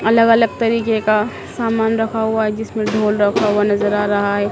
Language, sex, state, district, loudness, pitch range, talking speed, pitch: Hindi, female, Madhya Pradesh, Dhar, -16 LUFS, 205-225 Hz, 210 wpm, 215 Hz